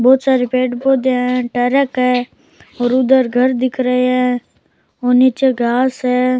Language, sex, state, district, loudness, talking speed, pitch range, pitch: Rajasthani, male, Rajasthan, Churu, -15 LUFS, 160 wpm, 250-260 Hz, 255 Hz